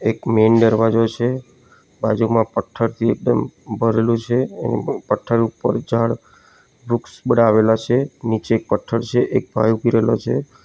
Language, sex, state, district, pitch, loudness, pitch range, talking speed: Gujarati, male, Gujarat, Valsad, 115 Hz, -18 LUFS, 110-120 Hz, 145 wpm